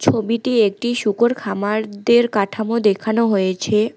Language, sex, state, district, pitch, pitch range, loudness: Bengali, female, West Bengal, Alipurduar, 220 Hz, 205-235 Hz, -18 LUFS